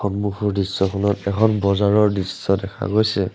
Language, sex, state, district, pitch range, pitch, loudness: Assamese, male, Assam, Sonitpur, 95-105 Hz, 100 Hz, -20 LUFS